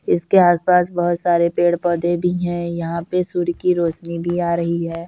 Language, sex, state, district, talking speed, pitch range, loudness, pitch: Hindi, female, Bihar, Kishanganj, 200 wpm, 170-175 Hz, -18 LUFS, 175 Hz